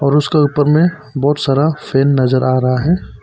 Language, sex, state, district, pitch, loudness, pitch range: Hindi, male, Arunachal Pradesh, Papum Pare, 140 Hz, -14 LUFS, 135-150 Hz